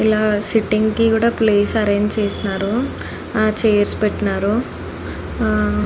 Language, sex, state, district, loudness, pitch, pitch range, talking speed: Telugu, female, Andhra Pradesh, Anantapur, -16 LUFS, 210 Hz, 195-220 Hz, 115 wpm